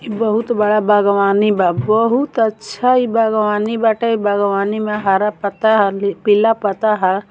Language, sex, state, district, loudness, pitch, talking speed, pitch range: Bhojpuri, female, Bihar, Muzaffarpur, -15 LUFS, 210 Hz, 165 wpm, 200-225 Hz